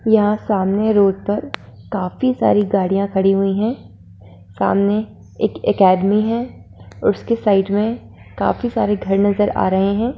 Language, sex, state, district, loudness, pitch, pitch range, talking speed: Hindi, female, Uttar Pradesh, Muzaffarnagar, -17 LUFS, 205 Hz, 195-215 Hz, 140 wpm